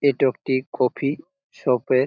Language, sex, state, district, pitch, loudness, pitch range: Bengali, male, West Bengal, Jalpaiguri, 130 Hz, -23 LUFS, 130-140 Hz